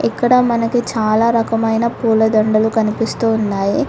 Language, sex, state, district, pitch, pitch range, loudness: Telugu, female, Telangana, Hyderabad, 225 Hz, 215-230 Hz, -15 LUFS